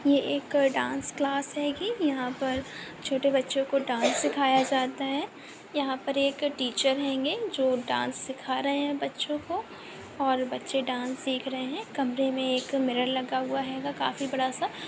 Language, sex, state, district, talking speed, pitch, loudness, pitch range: Hindi, female, Uttar Pradesh, Muzaffarnagar, 170 wpm, 270 Hz, -28 LUFS, 260-280 Hz